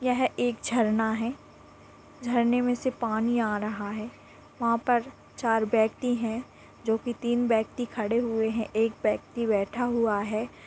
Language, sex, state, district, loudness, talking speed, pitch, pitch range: Hindi, female, Bihar, Saran, -27 LUFS, 155 wpm, 230 Hz, 220-245 Hz